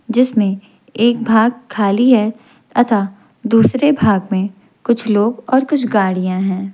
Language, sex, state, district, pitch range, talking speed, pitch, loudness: Hindi, female, Chhattisgarh, Raipur, 200-245 Hz, 135 wpm, 220 Hz, -15 LUFS